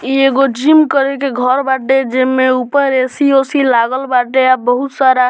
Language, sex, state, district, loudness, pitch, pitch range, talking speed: Bhojpuri, male, Bihar, Muzaffarpur, -12 LUFS, 265 Hz, 255-275 Hz, 205 wpm